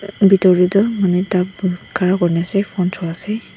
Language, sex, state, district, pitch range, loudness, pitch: Nagamese, female, Nagaland, Dimapur, 180-200 Hz, -16 LUFS, 185 Hz